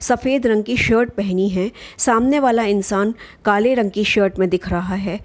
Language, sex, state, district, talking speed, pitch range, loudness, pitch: Hindi, female, Bihar, Gopalganj, 215 wpm, 195-235 Hz, -18 LUFS, 210 Hz